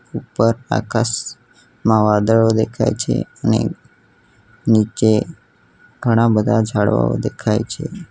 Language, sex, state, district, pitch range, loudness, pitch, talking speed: Gujarati, male, Gujarat, Valsad, 105-115 Hz, -17 LUFS, 110 Hz, 90 wpm